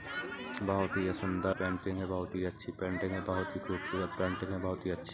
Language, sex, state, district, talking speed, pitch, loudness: Hindi, male, Chhattisgarh, Bilaspur, 185 wpm, 95 Hz, -36 LUFS